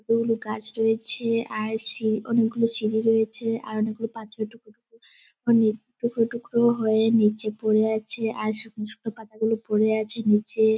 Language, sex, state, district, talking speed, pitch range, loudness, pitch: Bengali, male, West Bengal, Dakshin Dinajpur, 150 wpm, 215-230 Hz, -24 LUFS, 220 Hz